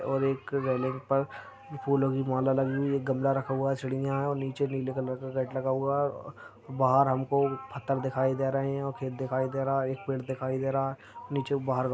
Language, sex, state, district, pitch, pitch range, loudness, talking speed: Hindi, male, Uttar Pradesh, Deoria, 135 Hz, 130-135 Hz, -30 LUFS, 235 wpm